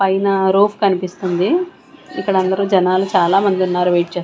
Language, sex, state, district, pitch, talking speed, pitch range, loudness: Telugu, female, Andhra Pradesh, Sri Satya Sai, 190 Hz, 140 wpm, 185-195 Hz, -16 LUFS